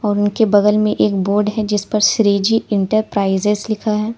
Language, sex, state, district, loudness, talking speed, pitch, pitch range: Hindi, female, Uttar Pradesh, Lalitpur, -16 LUFS, 170 wpm, 210 Hz, 205-215 Hz